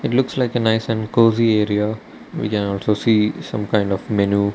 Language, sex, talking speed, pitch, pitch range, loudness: English, male, 210 wpm, 110 Hz, 105-115 Hz, -19 LUFS